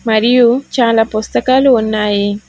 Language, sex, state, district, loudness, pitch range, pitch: Telugu, female, Telangana, Hyderabad, -12 LUFS, 215-250 Hz, 225 Hz